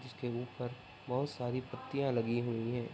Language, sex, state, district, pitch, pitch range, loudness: Hindi, male, Uttar Pradesh, Gorakhpur, 125 Hz, 120-130 Hz, -37 LUFS